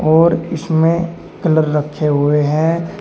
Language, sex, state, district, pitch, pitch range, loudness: Hindi, male, Uttar Pradesh, Shamli, 160 Hz, 150-165 Hz, -15 LUFS